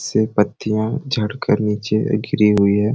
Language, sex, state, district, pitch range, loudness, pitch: Sadri, male, Chhattisgarh, Jashpur, 105-110 Hz, -18 LUFS, 105 Hz